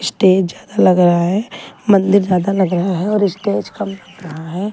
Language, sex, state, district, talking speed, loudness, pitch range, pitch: Hindi, female, Delhi, New Delhi, 205 wpm, -15 LUFS, 180-200 Hz, 190 Hz